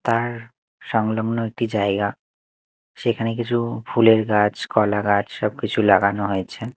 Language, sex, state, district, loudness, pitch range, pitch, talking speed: Bengali, male, Chhattisgarh, Raipur, -21 LUFS, 105-115 Hz, 110 Hz, 115 wpm